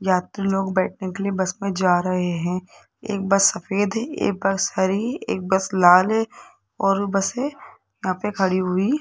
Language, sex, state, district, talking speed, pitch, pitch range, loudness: Hindi, male, Rajasthan, Jaipur, 185 wpm, 195 Hz, 185-205 Hz, -21 LUFS